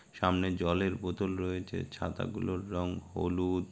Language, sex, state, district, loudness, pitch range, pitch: Bengali, male, West Bengal, Malda, -34 LUFS, 90-95 Hz, 90 Hz